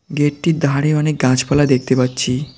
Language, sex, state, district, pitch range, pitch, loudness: Bengali, male, West Bengal, Cooch Behar, 130-150 Hz, 145 Hz, -16 LUFS